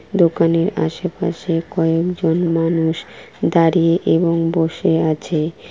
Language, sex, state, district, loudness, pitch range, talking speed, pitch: Bengali, female, West Bengal, Kolkata, -17 LUFS, 165-170 Hz, 95 wpm, 165 Hz